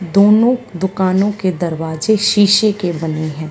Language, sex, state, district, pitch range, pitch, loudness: Hindi, female, Haryana, Charkhi Dadri, 160-205 Hz, 185 Hz, -15 LUFS